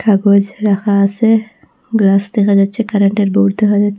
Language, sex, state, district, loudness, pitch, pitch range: Bengali, female, Assam, Hailakandi, -13 LUFS, 205 Hz, 200-215 Hz